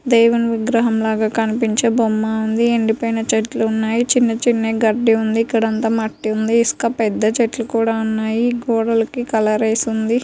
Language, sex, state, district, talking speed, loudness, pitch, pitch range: Telugu, female, Andhra Pradesh, Guntur, 130 wpm, -17 LUFS, 225 Hz, 220-230 Hz